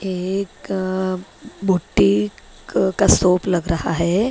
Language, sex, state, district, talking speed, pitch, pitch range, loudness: Hindi, female, Maharashtra, Mumbai Suburban, 125 wpm, 180 Hz, 165-190 Hz, -19 LUFS